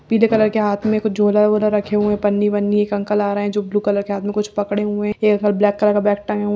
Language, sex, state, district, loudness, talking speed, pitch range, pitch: Hindi, female, Uttarakhand, Uttarkashi, -18 LUFS, 285 wpm, 205-210 Hz, 210 Hz